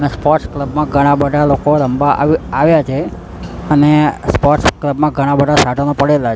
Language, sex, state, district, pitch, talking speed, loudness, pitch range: Gujarati, male, Gujarat, Gandhinagar, 145 Hz, 180 wpm, -13 LUFS, 140-150 Hz